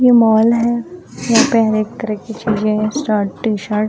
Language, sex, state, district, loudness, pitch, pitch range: Hindi, female, Jharkhand, Sahebganj, -15 LUFS, 225 Hz, 215-235 Hz